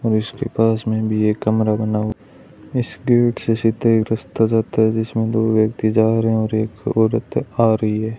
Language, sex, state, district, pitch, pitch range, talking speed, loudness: Hindi, male, Rajasthan, Bikaner, 110 Hz, 110-115 Hz, 185 wpm, -18 LUFS